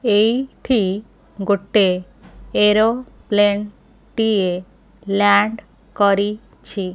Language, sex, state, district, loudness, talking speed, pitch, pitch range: Odia, female, Odisha, Khordha, -18 LUFS, 50 wpm, 205 Hz, 200-220 Hz